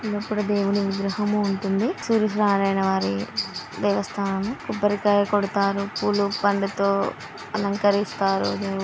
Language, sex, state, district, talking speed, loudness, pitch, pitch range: Telugu, female, Andhra Pradesh, Srikakulam, 90 wpm, -23 LUFS, 200 Hz, 195-205 Hz